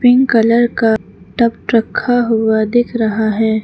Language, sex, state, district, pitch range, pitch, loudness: Hindi, female, Uttar Pradesh, Lucknow, 220-240 Hz, 225 Hz, -14 LUFS